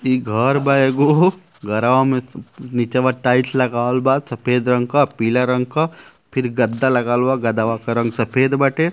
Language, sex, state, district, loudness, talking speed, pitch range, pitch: Bhojpuri, male, Uttar Pradesh, Ghazipur, -18 LUFS, 175 wpm, 120-135 Hz, 130 Hz